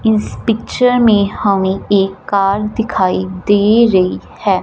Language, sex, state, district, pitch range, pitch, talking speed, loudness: Hindi, female, Punjab, Fazilka, 190-220 Hz, 200 Hz, 130 wpm, -14 LUFS